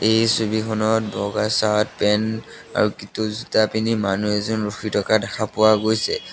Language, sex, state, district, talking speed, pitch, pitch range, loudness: Assamese, male, Assam, Sonitpur, 140 wpm, 110 Hz, 105-110 Hz, -21 LUFS